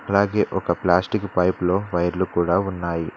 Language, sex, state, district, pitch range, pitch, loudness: Telugu, male, Telangana, Mahabubabad, 85-100 Hz, 90 Hz, -22 LUFS